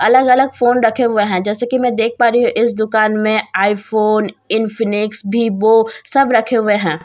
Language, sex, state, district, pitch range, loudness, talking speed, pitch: Hindi, female, Bihar, Katihar, 215-240 Hz, -14 LUFS, 195 wpm, 220 Hz